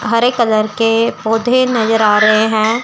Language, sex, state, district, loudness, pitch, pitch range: Hindi, female, Chandigarh, Chandigarh, -13 LUFS, 225 Hz, 215-235 Hz